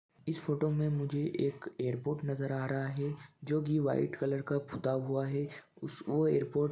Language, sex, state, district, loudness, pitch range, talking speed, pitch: Hindi, male, Chhattisgarh, Bilaspur, -34 LUFS, 135-150 Hz, 190 wpm, 145 Hz